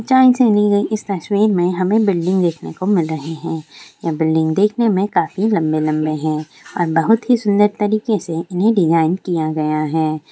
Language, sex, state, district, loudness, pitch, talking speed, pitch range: Hindi, female, Bihar, Bhagalpur, -17 LUFS, 180 Hz, 170 wpm, 160-210 Hz